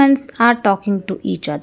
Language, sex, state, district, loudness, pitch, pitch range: English, female, Karnataka, Bangalore, -17 LUFS, 205 Hz, 190-240 Hz